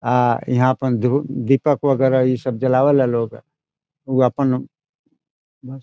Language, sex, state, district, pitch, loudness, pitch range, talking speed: Bhojpuri, male, Bihar, Saran, 130 Hz, -18 LUFS, 125-135 Hz, 145 wpm